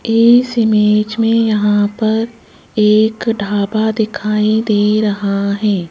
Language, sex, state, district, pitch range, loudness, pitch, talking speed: Hindi, female, Rajasthan, Jaipur, 205-225 Hz, -14 LUFS, 215 Hz, 110 wpm